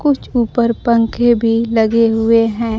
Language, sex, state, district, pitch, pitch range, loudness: Hindi, female, Bihar, Kaimur, 230 Hz, 225-235 Hz, -14 LUFS